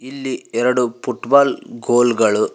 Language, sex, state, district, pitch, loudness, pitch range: Kannada, male, Karnataka, Koppal, 125 Hz, -17 LUFS, 120-135 Hz